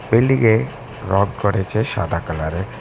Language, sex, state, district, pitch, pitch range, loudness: Bengali, male, West Bengal, Cooch Behar, 110 Hz, 95-115 Hz, -19 LUFS